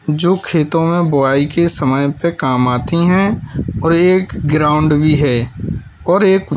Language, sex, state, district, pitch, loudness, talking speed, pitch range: Hindi, male, Uttar Pradesh, Lalitpur, 155 Hz, -14 LUFS, 155 wpm, 145-170 Hz